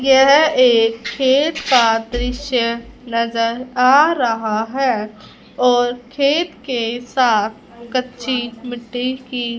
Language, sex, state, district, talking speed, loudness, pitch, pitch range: Hindi, female, Punjab, Fazilka, 105 wpm, -17 LUFS, 245 Hz, 235-260 Hz